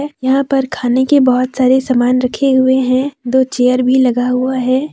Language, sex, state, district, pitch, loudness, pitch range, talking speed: Hindi, female, Jharkhand, Deoghar, 260 Hz, -13 LUFS, 250-265 Hz, 195 wpm